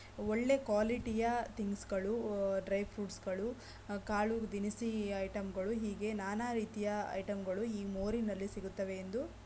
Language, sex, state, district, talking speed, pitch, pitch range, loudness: Kannada, female, Karnataka, Belgaum, 120 wpm, 205 Hz, 195-225 Hz, -38 LUFS